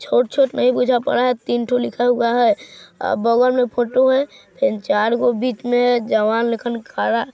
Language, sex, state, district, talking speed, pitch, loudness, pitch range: Hindi, female, Bihar, Vaishali, 190 wpm, 245 Hz, -18 LUFS, 235-250 Hz